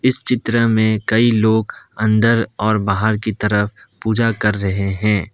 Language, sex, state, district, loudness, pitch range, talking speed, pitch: Hindi, male, Assam, Kamrup Metropolitan, -17 LUFS, 105-115 Hz, 155 wpm, 110 Hz